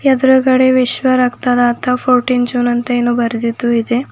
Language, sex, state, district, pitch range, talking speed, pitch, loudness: Kannada, female, Karnataka, Bidar, 240-255 Hz, 130 wpm, 245 Hz, -13 LUFS